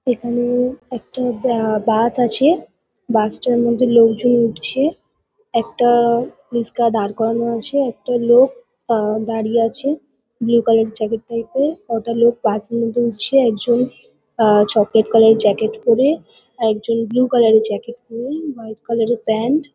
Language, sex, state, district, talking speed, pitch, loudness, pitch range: Bengali, female, West Bengal, Kolkata, 150 wpm, 235 Hz, -17 LUFS, 225-250 Hz